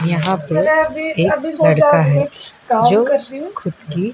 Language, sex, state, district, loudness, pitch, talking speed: Hindi, male, Madhya Pradesh, Dhar, -15 LUFS, 205 Hz, 115 wpm